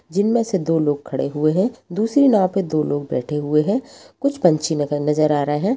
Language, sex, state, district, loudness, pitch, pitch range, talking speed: Hindi, female, Bihar, Samastipur, -19 LUFS, 160 Hz, 150-210 Hz, 220 wpm